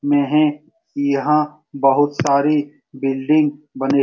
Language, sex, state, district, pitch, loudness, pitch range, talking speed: Hindi, male, Bihar, Saran, 145 Hz, -18 LUFS, 140-150 Hz, 135 wpm